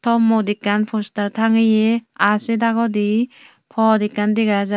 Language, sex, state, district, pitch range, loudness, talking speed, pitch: Chakma, female, Tripura, Unakoti, 210-230 Hz, -18 LUFS, 140 wpm, 220 Hz